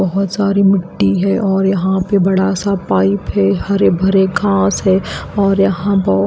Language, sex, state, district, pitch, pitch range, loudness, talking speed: Hindi, female, Haryana, Rohtak, 190 Hz, 180-195 Hz, -14 LUFS, 170 wpm